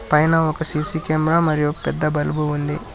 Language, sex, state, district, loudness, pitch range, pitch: Telugu, male, Telangana, Hyderabad, -19 LUFS, 150-160 Hz, 155 Hz